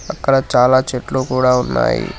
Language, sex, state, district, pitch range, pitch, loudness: Telugu, male, Telangana, Hyderabad, 125-130 Hz, 130 Hz, -15 LUFS